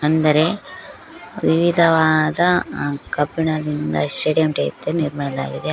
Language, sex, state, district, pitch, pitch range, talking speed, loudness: Kannada, female, Karnataka, Koppal, 155 Hz, 145-165 Hz, 65 wpm, -18 LUFS